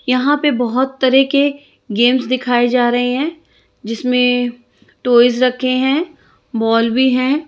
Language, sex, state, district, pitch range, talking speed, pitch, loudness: Hindi, female, Chandigarh, Chandigarh, 245-270 Hz, 135 wpm, 255 Hz, -15 LUFS